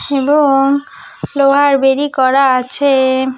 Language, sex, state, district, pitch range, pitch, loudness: Bengali, female, West Bengal, Jalpaiguri, 265-285 Hz, 275 Hz, -12 LUFS